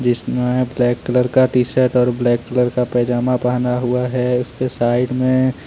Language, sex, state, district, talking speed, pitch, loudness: Hindi, male, Jharkhand, Deoghar, 180 wpm, 125 Hz, -17 LUFS